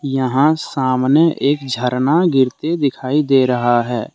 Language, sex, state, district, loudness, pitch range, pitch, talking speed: Hindi, male, Jharkhand, Deoghar, -16 LUFS, 125-150 Hz, 135 Hz, 130 wpm